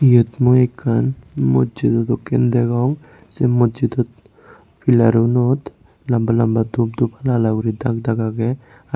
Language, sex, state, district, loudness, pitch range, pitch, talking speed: Chakma, male, Tripura, West Tripura, -18 LUFS, 115-125 Hz, 120 Hz, 135 wpm